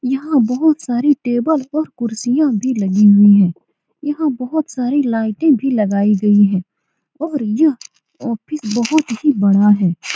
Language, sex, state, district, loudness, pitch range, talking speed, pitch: Hindi, female, Bihar, Saran, -15 LUFS, 210-295 Hz, 150 wpm, 250 Hz